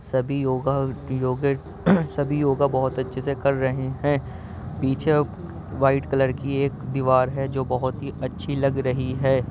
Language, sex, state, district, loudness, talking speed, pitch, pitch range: Hindi, male, Uttar Pradesh, Jyotiba Phule Nagar, -23 LUFS, 160 wpm, 135 Hz, 130-140 Hz